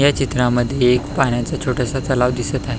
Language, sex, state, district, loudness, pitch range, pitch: Marathi, male, Maharashtra, Pune, -18 LUFS, 125-135 Hz, 125 Hz